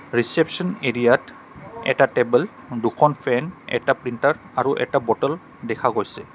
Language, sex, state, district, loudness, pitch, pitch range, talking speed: Assamese, male, Assam, Kamrup Metropolitan, -21 LUFS, 125 Hz, 120-150 Hz, 130 wpm